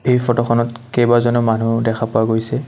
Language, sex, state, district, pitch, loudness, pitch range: Assamese, male, Assam, Kamrup Metropolitan, 115 Hz, -16 LUFS, 115-120 Hz